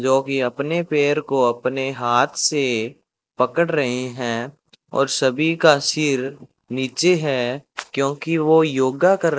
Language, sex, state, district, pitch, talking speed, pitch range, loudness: Hindi, male, Rajasthan, Bikaner, 135 Hz, 135 wpm, 125-155 Hz, -20 LUFS